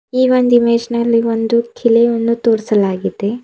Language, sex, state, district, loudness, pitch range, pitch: Kannada, female, Karnataka, Bidar, -14 LUFS, 230-235 Hz, 235 Hz